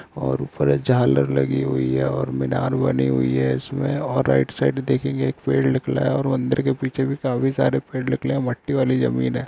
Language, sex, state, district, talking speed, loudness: Hindi, male, Jharkhand, Sahebganj, 220 wpm, -21 LUFS